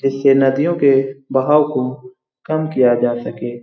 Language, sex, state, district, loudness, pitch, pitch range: Hindi, male, Bihar, Lakhisarai, -16 LUFS, 135 Hz, 125-140 Hz